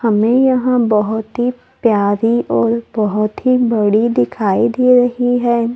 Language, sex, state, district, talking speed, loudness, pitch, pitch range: Hindi, female, Maharashtra, Gondia, 135 wpm, -14 LUFS, 235 Hz, 215-245 Hz